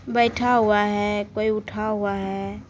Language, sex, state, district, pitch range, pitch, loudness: Maithili, female, Bihar, Supaul, 205-220 Hz, 210 Hz, -23 LUFS